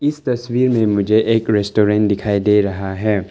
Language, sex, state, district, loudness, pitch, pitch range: Hindi, male, Arunachal Pradesh, Longding, -16 LUFS, 105 Hz, 100-115 Hz